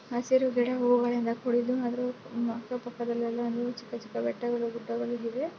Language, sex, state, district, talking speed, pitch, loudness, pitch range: Kannada, female, Karnataka, Bellary, 130 wpm, 240 Hz, -30 LUFS, 235-245 Hz